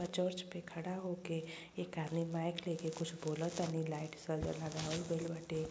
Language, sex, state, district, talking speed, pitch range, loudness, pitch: Bhojpuri, female, Uttar Pradesh, Gorakhpur, 170 wpm, 160-175 Hz, -41 LUFS, 165 Hz